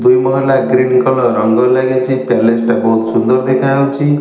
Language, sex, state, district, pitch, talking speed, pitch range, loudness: Odia, male, Odisha, Nuapada, 130 Hz, 155 wpm, 120-130 Hz, -12 LUFS